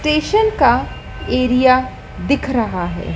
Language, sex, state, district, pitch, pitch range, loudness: Hindi, female, Madhya Pradesh, Dhar, 260 Hz, 250-305 Hz, -16 LUFS